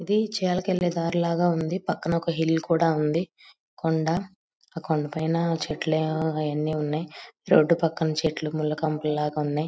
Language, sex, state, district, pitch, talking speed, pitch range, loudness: Telugu, female, Andhra Pradesh, Guntur, 160 Hz, 125 wpm, 155-170 Hz, -25 LUFS